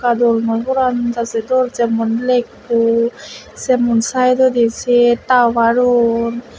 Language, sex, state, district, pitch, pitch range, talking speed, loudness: Chakma, female, Tripura, West Tripura, 240 Hz, 230-250 Hz, 110 wpm, -15 LUFS